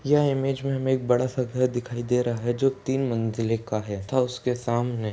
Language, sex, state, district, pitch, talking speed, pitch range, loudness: Hindi, male, Uttar Pradesh, Ghazipur, 125 Hz, 245 wpm, 120-130 Hz, -25 LUFS